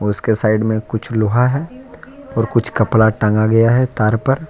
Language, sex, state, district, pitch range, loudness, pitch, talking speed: Hindi, male, Jharkhand, Ranchi, 110-125 Hz, -16 LUFS, 110 Hz, 185 wpm